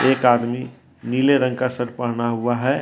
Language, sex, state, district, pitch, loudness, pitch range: Hindi, male, Jharkhand, Deoghar, 125 Hz, -20 LUFS, 120-130 Hz